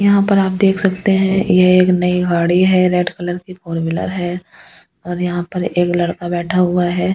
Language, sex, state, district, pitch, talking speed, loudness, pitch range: Hindi, female, Delhi, New Delhi, 180 Hz, 210 wpm, -15 LUFS, 175-185 Hz